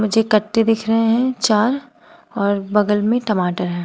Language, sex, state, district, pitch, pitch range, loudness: Hindi, female, Uttar Pradesh, Shamli, 215 Hz, 205-230 Hz, -18 LUFS